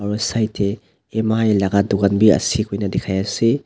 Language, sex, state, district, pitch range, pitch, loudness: Nagamese, male, Nagaland, Dimapur, 100-110 Hz, 100 Hz, -18 LUFS